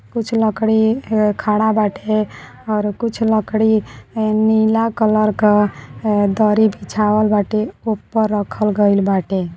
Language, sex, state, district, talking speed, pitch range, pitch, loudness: Bhojpuri, female, Uttar Pradesh, Deoria, 120 wpm, 210-220 Hz, 215 Hz, -17 LUFS